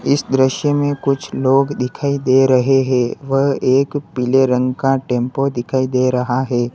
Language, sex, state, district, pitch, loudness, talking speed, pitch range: Hindi, male, Uttar Pradesh, Lalitpur, 130 Hz, -16 LUFS, 170 wpm, 125-135 Hz